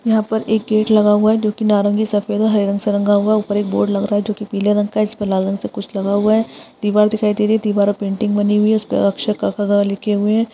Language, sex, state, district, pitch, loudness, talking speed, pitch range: Hindi, female, Uttar Pradesh, Varanasi, 210 Hz, -17 LUFS, 315 wpm, 205-215 Hz